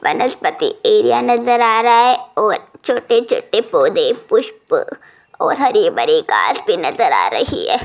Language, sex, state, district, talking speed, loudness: Hindi, female, Rajasthan, Jaipur, 155 wpm, -15 LUFS